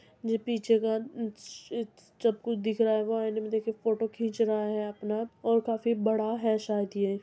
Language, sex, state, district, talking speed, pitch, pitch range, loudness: Hindi, female, Uttar Pradesh, Muzaffarnagar, 205 wpm, 220 Hz, 215-230 Hz, -30 LUFS